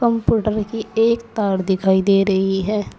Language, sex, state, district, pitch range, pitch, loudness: Hindi, female, Uttar Pradesh, Saharanpur, 195-225 Hz, 210 Hz, -18 LUFS